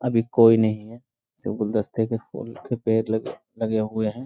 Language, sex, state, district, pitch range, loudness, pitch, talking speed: Hindi, male, Bihar, Sitamarhi, 110-120 Hz, -23 LUFS, 115 Hz, 195 wpm